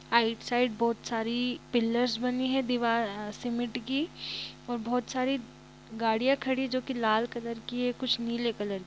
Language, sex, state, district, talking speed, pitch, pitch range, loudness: Hindi, female, Bihar, East Champaran, 175 wpm, 240 Hz, 230-250 Hz, -30 LUFS